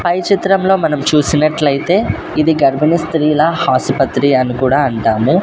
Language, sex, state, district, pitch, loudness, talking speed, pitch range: Telugu, male, Andhra Pradesh, Sri Satya Sai, 150 Hz, -13 LUFS, 120 wpm, 135-175 Hz